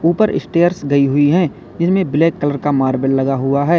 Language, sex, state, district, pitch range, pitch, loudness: Hindi, male, Uttar Pradesh, Lalitpur, 140-170 Hz, 145 Hz, -15 LUFS